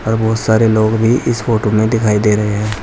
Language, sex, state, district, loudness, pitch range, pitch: Hindi, male, Uttar Pradesh, Saharanpur, -14 LUFS, 105-115 Hz, 110 Hz